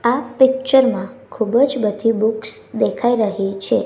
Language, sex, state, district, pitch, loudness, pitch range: Gujarati, female, Gujarat, Gandhinagar, 235 Hz, -17 LUFS, 215-260 Hz